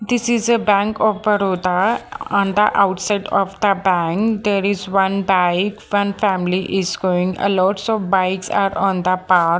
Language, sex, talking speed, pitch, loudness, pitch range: English, female, 170 wpm, 195 Hz, -18 LUFS, 185-205 Hz